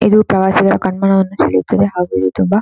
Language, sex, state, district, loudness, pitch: Kannada, female, Karnataka, Shimoga, -13 LUFS, 190 Hz